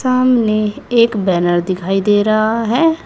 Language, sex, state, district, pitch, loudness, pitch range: Hindi, female, Uttar Pradesh, Saharanpur, 215 Hz, -14 LUFS, 195-245 Hz